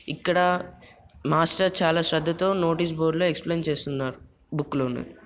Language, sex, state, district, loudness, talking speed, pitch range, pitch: Telugu, male, Telangana, Nalgonda, -25 LUFS, 135 wpm, 145-175 Hz, 165 Hz